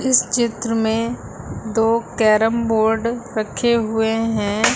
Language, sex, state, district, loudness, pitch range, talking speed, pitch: Hindi, female, Uttar Pradesh, Lucknow, -19 LUFS, 220-235 Hz, 115 wpm, 225 Hz